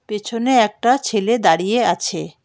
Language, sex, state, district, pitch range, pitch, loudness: Bengali, female, West Bengal, Alipurduar, 205-240 Hz, 225 Hz, -17 LUFS